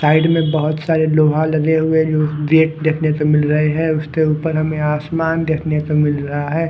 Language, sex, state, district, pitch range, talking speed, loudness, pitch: Hindi, male, Bihar, West Champaran, 150-160 Hz, 205 wpm, -16 LUFS, 155 Hz